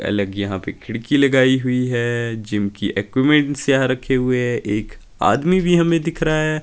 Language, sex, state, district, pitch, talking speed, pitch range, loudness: Hindi, male, Himachal Pradesh, Shimla, 125 Hz, 190 wpm, 105-145 Hz, -18 LUFS